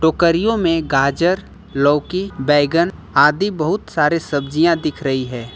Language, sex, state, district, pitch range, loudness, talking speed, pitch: Hindi, male, Jharkhand, Ranchi, 140-170 Hz, -17 LUFS, 130 wpm, 155 Hz